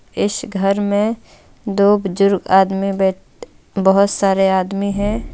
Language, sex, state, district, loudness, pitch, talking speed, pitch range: Hindi, female, Jharkhand, Deoghar, -16 LUFS, 200 Hz, 125 wpm, 195-205 Hz